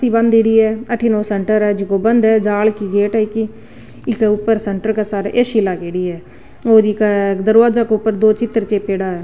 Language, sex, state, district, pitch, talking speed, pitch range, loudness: Rajasthani, female, Rajasthan, Nagaur, 215 Hz, 200 wpm, 200-225 Hz, -15 LUFS